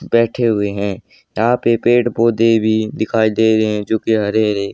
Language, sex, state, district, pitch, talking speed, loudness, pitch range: Hindi, male, Haryana, Rohtak, 110 Hz, 200 wpm, -16 LUFS, 110-115 Hz